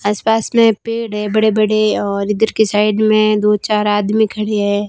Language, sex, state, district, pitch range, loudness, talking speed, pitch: Hindi, female, Rajasthan, Barmer, 210-220 Hz, -15 LUFS, 210 wpm, 215 Hz